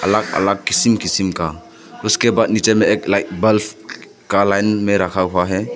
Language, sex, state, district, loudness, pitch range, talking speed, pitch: Hindi, male, Arunachal Pradesh, Papum Pare, -16 LUFS, 95-110 Hz, 190 wpm, 100 Hz